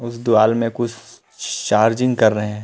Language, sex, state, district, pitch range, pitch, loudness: Chhattisgarhi, male, Chhattisgarh, Rajnandgaon, 110-120 Hz, 115 Hz, -18 LUFS